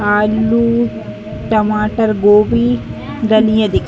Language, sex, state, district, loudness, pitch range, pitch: Hindi, female, Uttar Pradesh, Varanasi, -14 LUFS, 205-220 Hz, 215 Hz